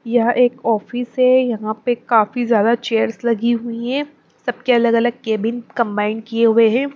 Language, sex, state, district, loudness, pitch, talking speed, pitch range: Hindi, female, Maharashtra, Mumbai Suburban, -18 LUFS, 235 Hz, 145 wpm, 225-245 Hz